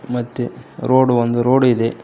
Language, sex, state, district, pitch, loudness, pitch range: Kannada, male, Karnataka, Koppal, 125 Hz, -16 LUFS, 120-130 Hz